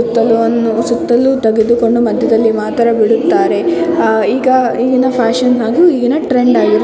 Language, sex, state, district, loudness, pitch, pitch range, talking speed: Kannada, female, Karnataka, Chamarajanagar, -12 LUFS, 235 Hz, 230-255 Hz, 105 wpm